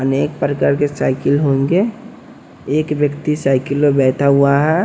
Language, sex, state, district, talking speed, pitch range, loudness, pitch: Hindi, male, Bihar, West Champaran, 150 wpm, 140-155 Hz, -16 LUFS, 145 Hz